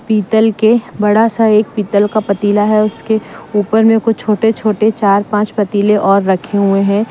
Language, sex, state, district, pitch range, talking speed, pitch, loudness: Hindi, female, Jharkhand, Deoghar, 205-220 Hz, 185 wpm, 210 Hz, -13 LUFS